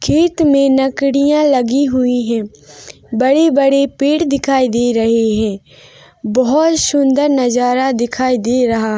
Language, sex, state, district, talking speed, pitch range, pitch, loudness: Hindi, female, Chhattisgarh, Rajnandgaon, 120 wpm, 230-280 Hz, 255 Hz, -13 LUFS